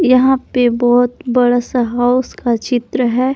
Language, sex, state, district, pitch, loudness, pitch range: Hindi, male, Jharkhand, Palamu, 245 Hz, -14 LUFS, 245-255 Hz